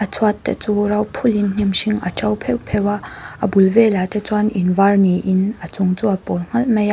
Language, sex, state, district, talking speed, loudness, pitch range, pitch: Mizo, female, Mizoram, Aizawl, 250 wpm, -18 LUFS, 190-210 Hz, 205 Hz